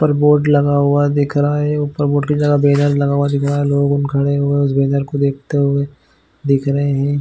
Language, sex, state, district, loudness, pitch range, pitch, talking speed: Hindi, male, Chhattisgarh, Bilaspur, -15 LUFS, 140-145 Hz, 140 Hz, 215 wpm